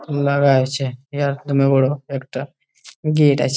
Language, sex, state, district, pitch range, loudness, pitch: Bengali, male, West Bengal, Malda, 135-145 Hz, -19 LUFS, 140 Hz